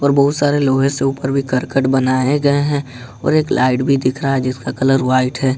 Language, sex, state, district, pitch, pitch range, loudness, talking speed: Hindi, male, Jharkhand, Ranchi, 135 Hz, 130-140 Hz, -16 LUFS, 235 wpm